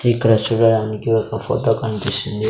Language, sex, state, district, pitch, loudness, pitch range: Telugu, male, Andhra Pradesh, Sri Satya Sai, 110 Hz, -18 LUFS, 110-115 Hz